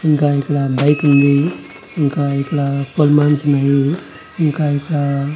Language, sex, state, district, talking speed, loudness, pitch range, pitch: Telugu, male, Andhra Pradesh, Annamaya, 110 wpm, -15 LUFS, 140-150 Hz, 145 Hz